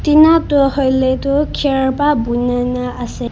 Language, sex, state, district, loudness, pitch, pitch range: Nagamese, female, Nagaland, Kohima, -15 LUFS, 265 Hz, 250-290 Hz